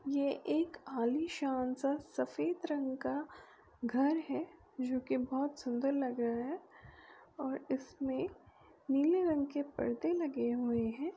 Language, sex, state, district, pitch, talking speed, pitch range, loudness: Bhojpuri, female, Uttar Pradesh, Deoria, 275 Hz, 135 wpm, 255-315 Hz, -36 LUFS